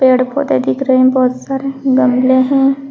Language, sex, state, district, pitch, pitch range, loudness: Hindi, female, Uttar Pradesh, Shamli, 260 Hz, 255-270 Hz, -13 LUFS